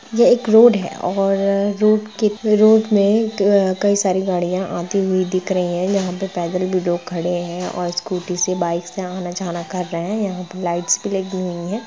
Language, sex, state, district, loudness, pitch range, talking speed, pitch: Hindi, female, Jharkhand, Jamtara, -18 LUFS, 180-205 Hz, 200 wpm, 185 Hz